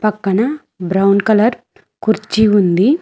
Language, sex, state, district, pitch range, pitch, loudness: Telugu, female, Telangana, Mahabubabad, 195-225 Hz, 215 Hz, -14 LUFS